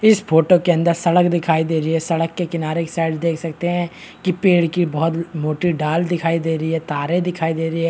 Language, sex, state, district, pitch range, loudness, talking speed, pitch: Hindi, male, Bihar, Kishanganj, 160-175 Hz, -19 LUFS, 250 wpm, 165 Hz